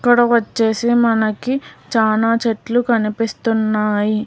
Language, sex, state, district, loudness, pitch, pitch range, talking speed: Telugu, female, Telangana, Hyderabad, -17 LUFS, 225 Hz, 215-235 Hz, 70 wpm